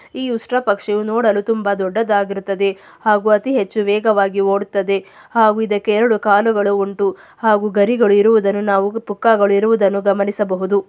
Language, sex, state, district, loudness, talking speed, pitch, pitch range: Kannada, female, Karnataka, Chamarajanagar, -16 LUFS, 125 wpm, 205 Hz, 200-220 Hz